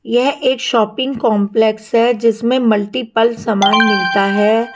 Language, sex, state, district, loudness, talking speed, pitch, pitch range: Hindi, female, Punjab, Kapurthala, -14 LUFS, 125 wpm, 230 Hz, 215-255 Hz